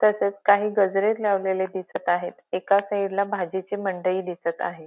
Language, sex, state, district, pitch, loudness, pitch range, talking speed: Marathi, female, Maharashtra, Pune, 195 Hz, -24 LUFS, 185-200 Hz, 150 wpm